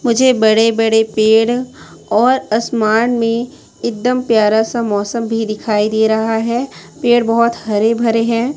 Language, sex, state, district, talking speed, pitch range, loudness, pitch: Hindi, female, Chhattisgarh, Raipur, 145 wpm, 220-235 Hz, -14 LUFS, 230 Hz